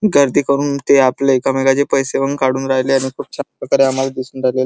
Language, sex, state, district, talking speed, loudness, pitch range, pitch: Marathi, male, Maharashtra, Chandrapur, 165 wpm, -15 LUFS, 130-140 Hz, 135 Hz